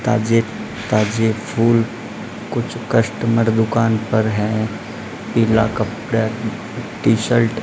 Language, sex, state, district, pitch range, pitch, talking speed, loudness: Hindi, male, Rajasthan, Bikaner, 110-115 Hz, 110 Hz, 100 wpm, -18 LUFS